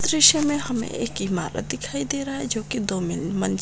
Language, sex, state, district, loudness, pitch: Hindi, female, Maharashtra, Pune, -23 LUFS, 190 Hz